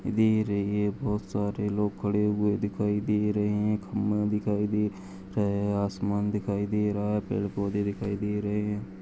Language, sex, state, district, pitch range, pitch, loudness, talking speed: Hindi, male, Chhattisgarh, Sarguja, 100-105 Hz, 105 Hz, -28 LUFS, 185 wpm